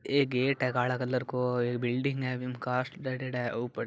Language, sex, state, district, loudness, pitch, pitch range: Marwari, male, Rajasthan, Churu, -31 LUFS, 125 Hz, 125-130 Hz